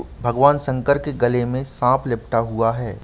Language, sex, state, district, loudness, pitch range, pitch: Hindi, male, Chhattisgarh, Balrampur, -19 LUFS, 115-140 Hz, 125 Hz